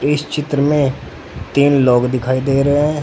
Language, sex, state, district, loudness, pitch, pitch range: Hindi, male, Uttar Pradesh, Saharanpur, -15 LUFS, 140 Hz, 130-145 Hz